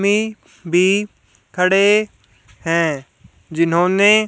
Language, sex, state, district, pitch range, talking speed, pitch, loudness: Hindi, female, Haryana, Jhajjar, 165-205 Hz, 55 wpm, 185 Hz, -16 LUFS